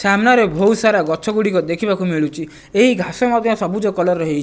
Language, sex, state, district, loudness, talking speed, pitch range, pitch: Odia, male, Odisha, Nuapada, -16 LUFS, 190 wpm, 170-220 Hz, 200 Hz